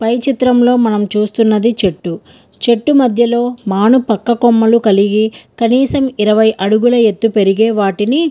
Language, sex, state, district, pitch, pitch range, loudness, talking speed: Telugu, female, Andhra Pradesh, Guntur, 225 Hz, 210-240 Hz, -12 LUFS, 125 wpm